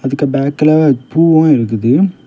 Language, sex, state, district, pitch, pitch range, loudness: Tamil, male, Tamil Nadu, Kanyakumari, 140 Hz, 120-155 Hz, -11 LUFS